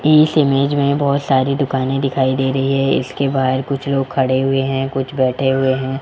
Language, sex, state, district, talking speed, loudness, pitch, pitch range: Hindi, male, Rajasthan, Jaipur, 210 wpm, -17 LUFS, 135 Hz, 130-140 Hz